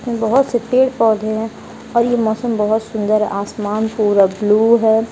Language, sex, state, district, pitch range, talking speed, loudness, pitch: Hindi, female, Bihar, Kaimur, 215-235 Hz, 175 wpm, -16 LUFS, 220 Hz